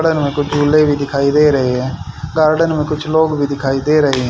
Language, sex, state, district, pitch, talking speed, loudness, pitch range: Hindi, male, Haryana, Rohtak, 145 Hz, 250 wpm, -15 LUFS, 140-155 Hz